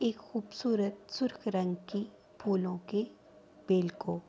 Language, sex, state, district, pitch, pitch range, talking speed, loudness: Urdu, female, Andhra Pradesh, Anantapur, 205 Hz, 185-220 Hz, 125 wpm, -34 LUFS